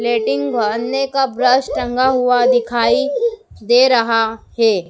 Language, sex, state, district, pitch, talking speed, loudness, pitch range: Hindi, female, Madhya Pradesh, Dhar, 245 Hz, 100 wpm, -16 LUFS, 230-255 Hz